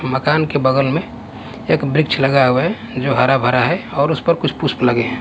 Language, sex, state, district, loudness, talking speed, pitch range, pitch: Hindi, male, Bihar, West Champaran, -16 LUFS, 230 wpm, 130-155 Hz, 140 Hz